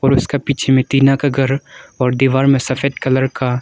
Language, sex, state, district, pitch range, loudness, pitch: Hindi, male, Arunachal Pradesh, Longding, 130-140 Hz, -15 LUFS, 135 Hz